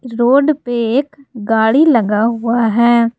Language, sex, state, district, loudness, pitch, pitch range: Hindi, female, Jharkhand, Garhwa, -13 LUFS, 235 Hz, 230-270 Hz